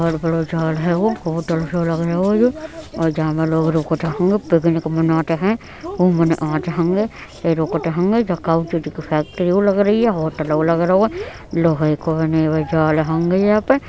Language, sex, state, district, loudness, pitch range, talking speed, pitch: Hindi, female, Uttar Pradesh, Etah, -18 LUFS, 160-185 Hz, 190 wpm, 165 Hz